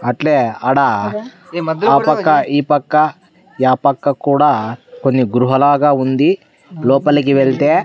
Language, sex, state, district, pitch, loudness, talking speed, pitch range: Telugu, male, Andhra Pradesh, Sri Satya Sai, 145 Hz, -14 LUFS, 105 wpm, 135-155 Hz